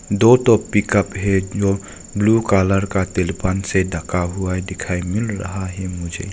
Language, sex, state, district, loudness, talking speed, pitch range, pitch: Hindi, male, Arunachal Pradesh, Lower Dibang Valley, -19 LUFS, 150 wpm, 90-100 Hz, 95 Hz